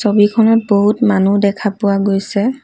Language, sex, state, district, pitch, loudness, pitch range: Assamese, female, Assam, Kamrup Metropolitan, 205 Hz, -13 LUFS, 200-220 Hz